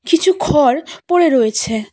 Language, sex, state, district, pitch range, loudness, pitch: Bengali, female, West Bengal, Cooch Behar, 225-345 Hz, -14 LUFS, 320 Hz